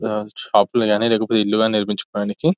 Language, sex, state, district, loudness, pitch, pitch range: Telugu, male, Telangana, Nalgonda, -19 LUFS, 110 Hz, 105-115 Hz